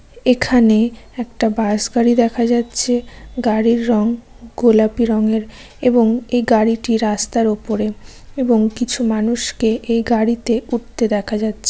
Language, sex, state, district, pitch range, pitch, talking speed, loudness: Bengali, female, West Bengal, Jalpaiguri, 220-240 Hz, 230 Hz, 125 wpm, -17 LUFS